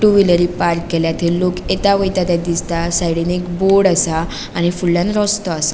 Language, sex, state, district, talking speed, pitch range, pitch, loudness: Konkani, female, Goa, North and South Goa, 190 wpm, 170-190 Hz, 175 Hz, -16 LUFS